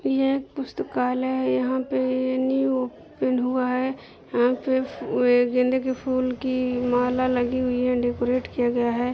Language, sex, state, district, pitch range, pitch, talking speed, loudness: Hindi, female, Jharkhand, Jamtara, 245-260 Hz, 255 Hz, 155 wpm, -24 LUFS